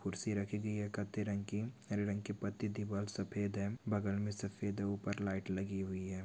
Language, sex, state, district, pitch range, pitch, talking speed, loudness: Hindi, male, Chhattisgarh, Korba, 100-105 Hz, 100 Hz, 220 wpm, -40 LUFS